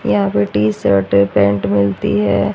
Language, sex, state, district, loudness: Hindi, female, Haryana, Rohtak, -15 LUFS